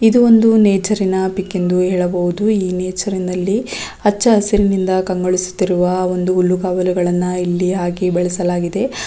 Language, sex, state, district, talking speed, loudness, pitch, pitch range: Kannada, female, Karnataka, Raichur, 120 wpm, -16 LUFS, 185 Hz, 180-200 Hz